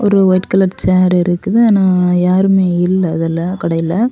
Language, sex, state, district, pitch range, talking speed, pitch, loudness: Tamil, female, Tamil Nadu, Kanyakumari, 175-195 Hz, 145 wpm, 185 Hz, -13 LUFS